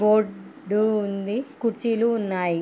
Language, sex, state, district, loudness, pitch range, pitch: Telugu, female, Andhra Pradesh, Srikakulam, -24 LUFS, 200-230 Hz, 215 Hz